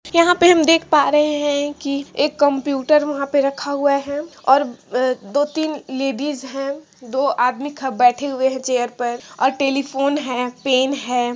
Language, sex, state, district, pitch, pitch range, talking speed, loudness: Hindi, female, Jharkhand, Sahebganj, 275 Hz, 260-290 Hz, 135 wpm, -19 LUFS